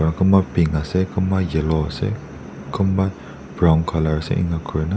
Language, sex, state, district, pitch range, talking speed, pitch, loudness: Nagamese, male, Nagaland, Dimapur, 75-95 Hz, 135 wpm, 80 Hz, -20 LUFS